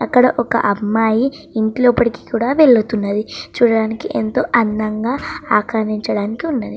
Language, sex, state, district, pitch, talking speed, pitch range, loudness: Telugu, female, Andhra Pradesh, Srikakulam, 225 Hz, 105 wpm, 215-245 Hz, -16 LUFS